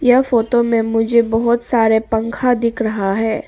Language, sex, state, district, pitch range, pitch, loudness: Hindi, female, Arunachal Pradesh, Papum Pare, 225-235 Hz, 230 Hz, -16 LUFS